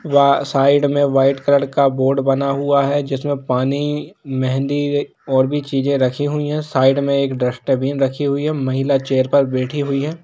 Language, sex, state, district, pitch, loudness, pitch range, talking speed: Hindi, male, Jharkhand, Jamtara, 140 Hz, -17 LUFS, 135-145 Hz, 195 wpm